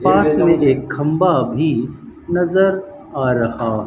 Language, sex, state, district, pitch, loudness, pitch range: Hindi, male, Rajasthan, Bikaner, 145 Hz, -17 LUFS, 125-175 Hz